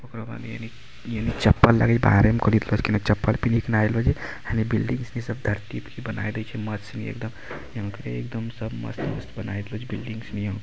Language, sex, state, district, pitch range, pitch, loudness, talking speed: Maithili, male, Bihar, Bhagalpur, 105-115 Hz, 110 Hz, -25 LUFS, 175 wpm